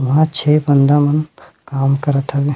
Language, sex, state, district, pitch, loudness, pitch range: Chhattisgarhi, male, Chhattisgarh, Rajnandgaon, 145 Hz, -14 LUFS, 140-150 Hz